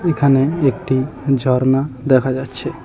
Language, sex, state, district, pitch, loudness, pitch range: Bengali, male, West Bengal, Cooch Behar, 135 Hz, -17 LUFS, 130-140 Hz